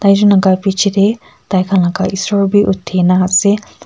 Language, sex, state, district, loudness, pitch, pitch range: Nagamese, female, Nagaland, Kohima, -12 LUFS, 195 Hz, 185-200 Hz